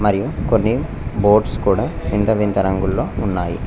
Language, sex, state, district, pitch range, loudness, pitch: Telugu, male, Telangana, Mahabubabad, 95-105 Hz, -18 LUFS, 100 Hz